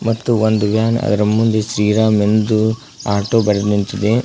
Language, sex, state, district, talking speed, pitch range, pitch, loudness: Kannada, male, Karnataka, Koppal, 140 wpm, 105-115 Hz, 110 Hz, -16 LUFS